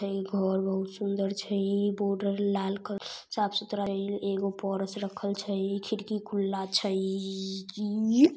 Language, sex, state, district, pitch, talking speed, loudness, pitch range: Maithili, female, Bihar, Samastipur, 200 Hz, 180 wpm, -30 LUFS, 195-205 Hz